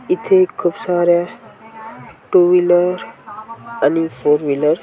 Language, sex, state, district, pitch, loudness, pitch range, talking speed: Marathi, female, Maharashtra, Washim, 175 Hz, -15 LUFS, 160-220 Hz, 110 wpm